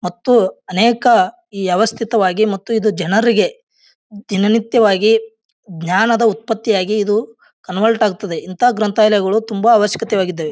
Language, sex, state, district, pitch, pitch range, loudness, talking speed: Kannada, male, Karnataka, Bijapur, 215 Hz, 200-230 Hz, -15 LUFS, 95 wpm